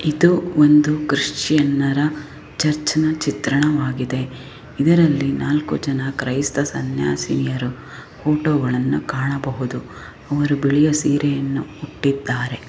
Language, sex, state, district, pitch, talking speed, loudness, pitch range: Kannada, female, Karnataka, Chamarajanagar, 145 Hz, 80 wpm, -19 LUFS, 135-150 Hz